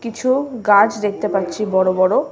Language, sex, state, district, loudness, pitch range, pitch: Bengali, female, West Bengal, Malda, -17 LUFS, 190-240 Hz, 210 Hz